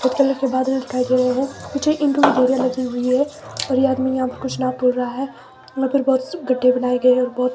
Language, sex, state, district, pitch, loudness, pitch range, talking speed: Hindi, female, Himachal Pradesh, Shimla, 260 Hz, -19 LUFS, 255-270 Hz, 205 wpm